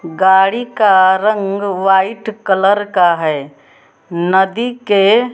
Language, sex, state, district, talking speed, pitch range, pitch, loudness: Hindi, female, Bihar, West Champaran, 100 wpm, 185-210 Hz, 195 Hz, -13 LUFS